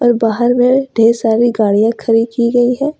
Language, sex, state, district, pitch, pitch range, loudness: Hindi, female, Jharkhand, Ranchi, 240 Hz, 225-245 Hz, -13 LUFS